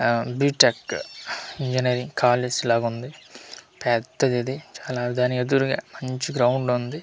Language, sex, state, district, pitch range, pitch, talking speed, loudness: Telugu, male, Andhra Pradesh, Manyam, 120-135 Hz, 125 Hz, 135 wpm, -23 LUFS